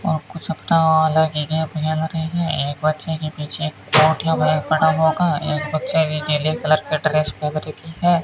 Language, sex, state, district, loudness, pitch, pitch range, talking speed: Hindi, male, Rajasthan, Bikaner, -19 LUFS, 155 Hz, 155-160 Hz, 180 wpm